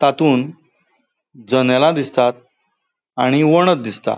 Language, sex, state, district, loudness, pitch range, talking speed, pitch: Konkani, male, Goa, North and South Goa, -16 LUFS, 125-160 Hz, 85 wpm, 140 Hz